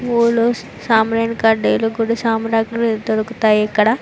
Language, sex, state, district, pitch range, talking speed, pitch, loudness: Telugu, female, Andhra Pradesh, Chittoor, 220-230 Hz, 105 wpm, 225 Hz, -17 LUFS